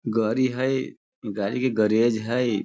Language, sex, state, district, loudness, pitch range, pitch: Hindi, male, Bihar, Sitamarhi, -24 LUFS, 110-130 Hz, 120 Hz